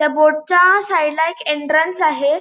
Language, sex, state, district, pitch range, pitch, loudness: Marathi, female, Goa, North and South Goa, 300-335 Hz, 315 Hz, -15 LUFS